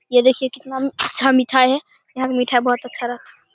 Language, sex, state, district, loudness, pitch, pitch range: Hindi, male, Bihar, Begusarai, -18 LUFS, 255 Hz, 250-265 Hz